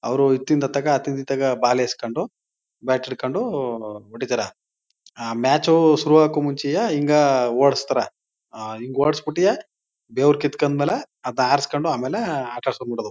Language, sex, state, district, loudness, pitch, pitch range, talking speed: Kannada, male, Karnataka, Mysore, -21 LUFS, 140 Hz, 125-145 Hz, 130 wpm